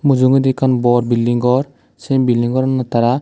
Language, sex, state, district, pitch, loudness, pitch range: Chakma, male, Tripura, Dhalai, 130 Hz, -15 LUFS, 120-130 Hz